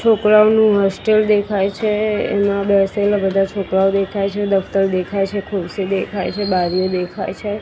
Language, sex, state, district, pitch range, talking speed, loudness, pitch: Gujarati, female, Gujarat, Gandhinagar, 195-210 Hz, 150 wpm, -17 LUFS, 200 Hz